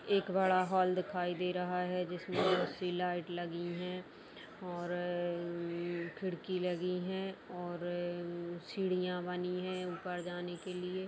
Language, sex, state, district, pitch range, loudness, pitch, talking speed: Hindi, female, Uttar Pradesh, Jalaun, 175-185 Hz, -37 LUFS, 180 Hz, 140 wpm